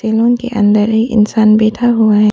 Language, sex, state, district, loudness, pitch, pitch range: Hindi, female, Arunachal Pradesh, Papum Pare, -11 LUFS, 220 Hz, 210-235 Hz